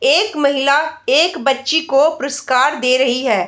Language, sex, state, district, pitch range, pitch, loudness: Hindi, female, Bihar, Darbhanga, 265-310 Hz, 280 Hz, -15 LUFS